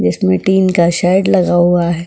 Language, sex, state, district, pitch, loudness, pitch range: Hindi, female, Uttar Pradesh, Budaun, 175 Hz, -12 LUFS, 170-185 Hz